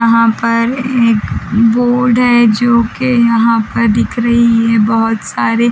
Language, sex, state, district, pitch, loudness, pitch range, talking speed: Hindi, female, Bihar, Patna, 230 Hz, -11 LUFS, 225-240 Hz, 135 wpm